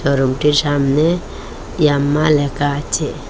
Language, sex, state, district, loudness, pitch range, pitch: Bengali, female, Assam, Hailakandi, -16 LUFS, 140-150 Hz, 145 Hz